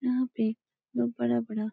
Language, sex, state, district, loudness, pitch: Hindi, female, Uttar Pradesh, Etah, -30 LUFS, 220 Hz